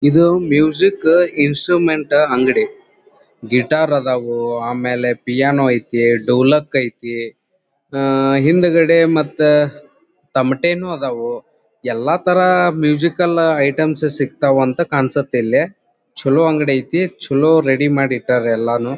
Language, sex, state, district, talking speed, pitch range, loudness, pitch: Kannada, male, Karnataka, Dharwad, 100 wpm, 130-170 Hz, -15 LUFS, 145 Hz